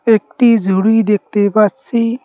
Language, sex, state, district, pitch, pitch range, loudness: Bengali, male, West Bengal, Cooch Behar, 220 Hz, 205-230 Hz, -13 LUFS